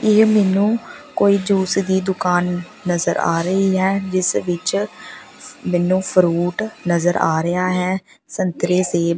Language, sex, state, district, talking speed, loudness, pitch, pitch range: Punjabi, female, Punjab, Pathankot, 130 wpm, -18 LUFS, 185 Hz, 175-195 Hz